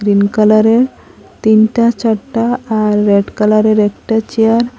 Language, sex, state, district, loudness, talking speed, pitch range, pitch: Bengali, female, Assam, Hailakandi, -12 LUFS, 125 wpm, 210-230 Hz, 220 Hz